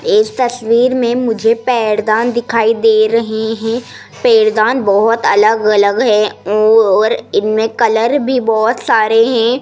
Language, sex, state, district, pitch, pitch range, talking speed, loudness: Hindi, female, Rajasthan, Jaipur, 225 Hz, 215-240 Hz, 125 wpm, -12 LUFS